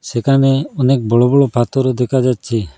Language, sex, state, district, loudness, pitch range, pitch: Bengali, male, Assam, Hailakandi, -14 LUFS, 120-135 Hz, 130 Hz